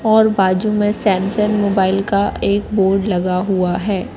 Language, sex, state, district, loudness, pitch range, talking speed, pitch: Hindi, female, Madhya Pradesh, Katni, -16 LUFS, 190-210 Hz, 160 wpm, 200 Hz